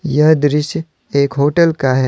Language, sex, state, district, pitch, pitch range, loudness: Hindi, male, Jharkhand, Deoghar, 145 Hz, 140-160 Hz, -14 LUFS